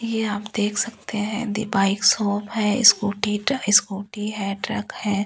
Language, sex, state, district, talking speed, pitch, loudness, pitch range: Hindi, female, Delhi, New Delhi, 170 wpm, 210 Hz, -21 LUFS, 205-220 Hz